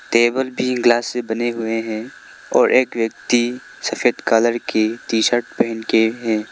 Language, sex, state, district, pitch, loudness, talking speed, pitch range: Hindi, male, Arunachal Pradesh, Lower Dibang Valley, 115 Hz, -19 LUFS, 155 wpm, 110-120 Hz